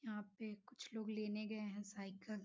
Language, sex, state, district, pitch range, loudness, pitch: Hindi, female, Uttar Pradesh, Gorakhpur, 205-220 Hz, -48 LUFS, 215 Hz